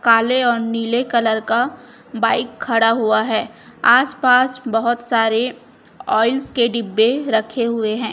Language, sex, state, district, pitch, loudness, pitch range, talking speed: Hindi, female, Chhattisgarh, Raipur, 235 Hz, -17 LUFS, 225-245 Hz, 140 wpm